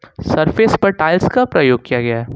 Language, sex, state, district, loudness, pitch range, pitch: Hindi, male, Uttar Pradesh, Lucknow, -14 LUFS, 125-200 Hz, 155 Hz